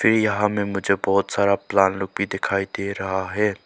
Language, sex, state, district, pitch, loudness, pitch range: Hindi, male, Arunachal Pradesh, Lower Dibang Valley, 100 Hz, -22 LUFS, 95-105 Hz